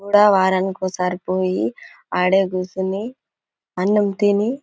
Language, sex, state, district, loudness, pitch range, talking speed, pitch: Telugu, female, Andhra Pradesh, Anantapur, -19 LUFS, 185-205 Hz, 105 wpm, 190 Hz